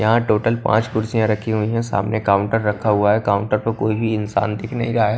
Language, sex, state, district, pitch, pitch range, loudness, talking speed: Hindi, male, Punjab, Kapurthala, 110 Hz, 105-115 Hz, -19 LUFS, 245 wpm